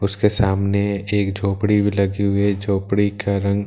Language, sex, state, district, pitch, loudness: Hindi, male, Bihar, Katihar, 100 Hz, -19 LUFS